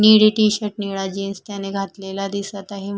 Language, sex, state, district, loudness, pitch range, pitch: Marathi, female, Maharashtra, Mumbai Suburban, -21 LUFS, 195-205 Hz, 200 Hz